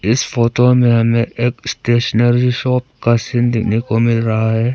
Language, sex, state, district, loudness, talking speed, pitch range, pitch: Hindi, male, Arunachal Pradesh, Papum Pare, -15 LUFS, 175 wpm, 115-125 Hz, 120 Hz